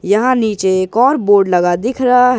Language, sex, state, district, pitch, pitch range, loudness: Hindi, male, Jharkhand, Ranchi, 215 Hz, 190-250 Hz, -13 LUFS